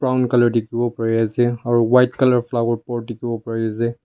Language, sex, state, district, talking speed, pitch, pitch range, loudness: Nagamese, male, Nagaland, Kohima, 190 wpm, 120 Hz, 115-120 Hz, -19 LUFS